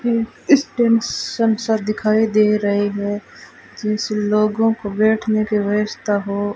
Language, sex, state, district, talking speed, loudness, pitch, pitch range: Hindi, female, Rajasthan, Bikaner, 120 wpm, -18 LUFS, 215 Hz, 205-225 Hz